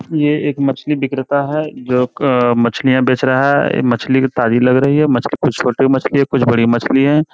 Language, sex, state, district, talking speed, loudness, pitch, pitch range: Hindi, male, Bihar, Jamui, 205 wpm, -14 LUFS, 135 Hz, 125-140 Hz